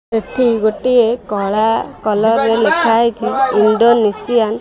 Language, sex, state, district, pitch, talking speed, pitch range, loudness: Odia, male, Odisha, Khordha, 225 Hz, 90 wpm, 215-235 Hz, -14 LUFS